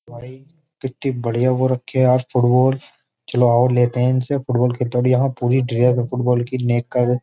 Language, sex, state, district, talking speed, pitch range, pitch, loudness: Hindi, male, Uttar Pradesh, Jyotiba Phule Nagar, 215 wpm, 125-130 Hz, 125 Hz, -18 LUFS